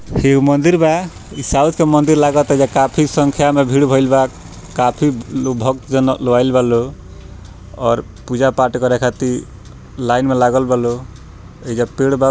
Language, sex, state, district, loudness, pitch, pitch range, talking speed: Bhojpuri, male, Bihar, Gopalganj, -15 LUFS, 130 Hz, 125-140 Hz, 165 wpm